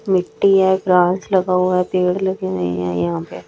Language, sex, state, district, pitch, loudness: Hindi, female, Chhattisgarh, Raipur, 180 Hz, -17 LUFS